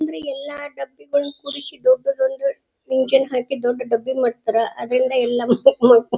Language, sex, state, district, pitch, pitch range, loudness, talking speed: Kannada, female, Karnataka, Dharwad, 260 Hz, 240-285 Hz, -20 LUFS, 145 wpm